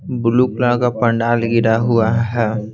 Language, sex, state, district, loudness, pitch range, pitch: Hindi, male, Bihar, Patna, -16 LUFS, 115-120 Hz, 115 Hz